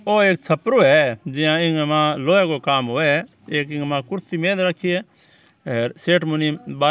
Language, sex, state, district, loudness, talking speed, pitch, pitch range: Marwari, male, Rajasthan, Churu, -19 LUFS, 190 wpm, 155 Hz, 145-180 Hz